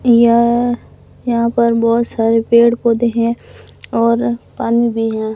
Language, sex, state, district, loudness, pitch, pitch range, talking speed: Hindi, female, Rajasthan, Barmer, -14 LUFS, 235 Hz, 230-235 Hz, 135 wpm